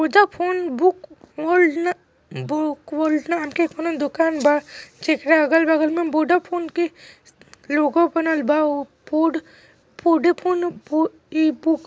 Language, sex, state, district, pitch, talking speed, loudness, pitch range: Bhojpuri, female, Bihar, East Champaran, 320 Hz, 120 wpm, -20 LUFS, 305-340 Hz